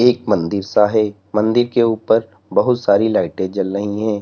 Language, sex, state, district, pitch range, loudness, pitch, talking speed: Hindi, male, Uttar Pradesh, Lalitpur, 100-115 Hz, -17 LUFS, 105 Hz, 185 wpm